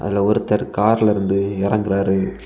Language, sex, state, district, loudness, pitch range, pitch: Tamil, male, Tamil Nadu, Kanyakumari, -18 LUFS, 100-105 Hz, 100 Hz